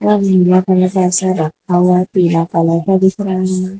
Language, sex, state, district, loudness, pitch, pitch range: Hindi, female, Gujarat, Valsad, -13 LUFS, 185 Hz, 175-190 Hz